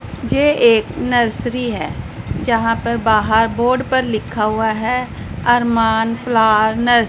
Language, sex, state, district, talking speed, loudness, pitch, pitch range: Hindi, female, Punjab, Pathankot, 125 wpm, -16 LUFS, 230 Hz, 220-245 Hz